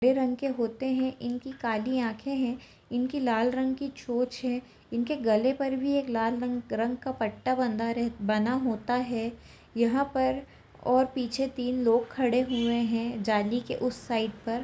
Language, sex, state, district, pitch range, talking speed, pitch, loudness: Hindi, female, Andhra Pradesh, Anantapur, 230-260 Hz, 175 wpm, 245 Hz, -29 LUFS